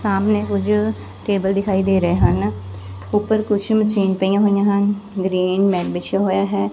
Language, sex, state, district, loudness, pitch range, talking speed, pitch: Punjabi, female, Punjab, Fazilka, -18 LUFS, 185-205 Hz, 160 wpm, 195 Hz